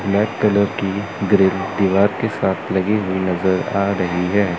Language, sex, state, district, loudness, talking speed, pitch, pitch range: Hindi, male, Chandigarh, Chandigarh, -18 LUFS, 170 wpm, 100 Hz, 95-100 Hz